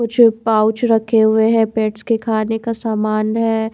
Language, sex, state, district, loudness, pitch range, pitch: Hindi, female, Haryana, Charkhi Dadri, -16 LUFS, 220-230 Hz, 225 Hz